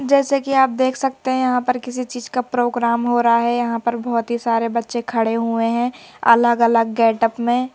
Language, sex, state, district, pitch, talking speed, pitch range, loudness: Hindi, female, Madhya Pradesh, Bhopal, 240 Hz, 225 wpm, 235-250 Hz, -18 LUFS